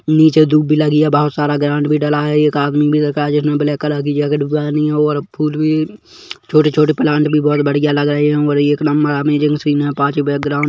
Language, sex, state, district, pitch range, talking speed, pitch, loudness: Hindi, male, Chhattisgarh, Kabirdham, 145-150 Hz, 250 wpm, 150 Hz, -14 LUFS